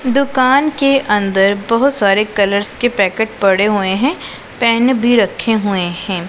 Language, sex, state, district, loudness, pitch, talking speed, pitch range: Hindi, female, Punjab, Pathankot, -14 LUFS, 215 Hz, 150 wpm, 200-255 Hz